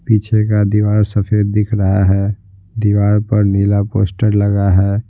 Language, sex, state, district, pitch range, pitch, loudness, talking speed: Hindi, male, Bihar, Patna, 100-105 Hz, 105 Hz, -14 LUFS, 165 wpm